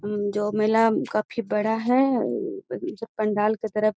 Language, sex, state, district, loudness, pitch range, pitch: Magahi, female, Bihar, Gaya, -24 LUFS, 210-230 Hz, 215 Hz